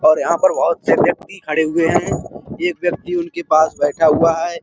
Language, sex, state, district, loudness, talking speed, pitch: Hindi, male, Uttar Pradesh, Budaun, -17 LUFS, 220 wpm, 170 Hz